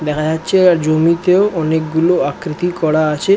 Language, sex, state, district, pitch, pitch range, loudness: Bengali, male, West Bengal, Kolkata, 160 Hz, 155-180 Hz, -14 LUFS